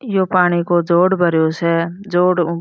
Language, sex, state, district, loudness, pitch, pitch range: Marwari, female, Rajasthan, Churu, -16 LUFS, 175 Hz, 170-180 Hz